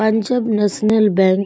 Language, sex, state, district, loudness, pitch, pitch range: Bengali, female, West Bengal, Purulia, -16 LUFS, 215 Hz, 200-220 Hz